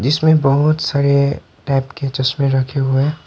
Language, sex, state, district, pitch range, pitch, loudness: Hindi, male, Tripura, Dhalai, 135-145 Hz, 140 Hz, -16 LUFS